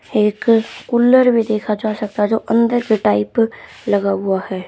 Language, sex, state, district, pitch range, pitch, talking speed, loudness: Hindi, female, Haryana, Rohtak, 205-230 Hz, 215 Hz, 180 wpm, -16 LUFS